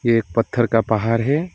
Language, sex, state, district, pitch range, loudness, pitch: Hindi, male, West Bengal, Alipurduar, 115-130 Hz, -19 LUFS, 115 Hz